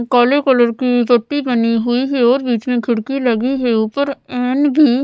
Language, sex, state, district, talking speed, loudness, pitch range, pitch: Hindi, female, Odisha, Sambalpur, 190 wpm, -15 LUFS, 240-270 Hz, 250 Hz